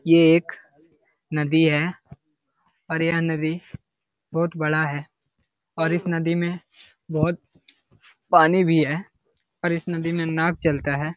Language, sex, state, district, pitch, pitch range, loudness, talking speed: Hindi, male, Jharkhand, Jamtara, 165 Hz, 155-170 Hz, -22 LUFS, 135 wpm